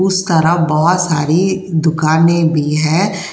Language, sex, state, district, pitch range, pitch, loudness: Hindi, female, Uttar Pradesh, Jyotiba Phule Nagar, 160-185 Hz, 165 Hz, -13 LUFS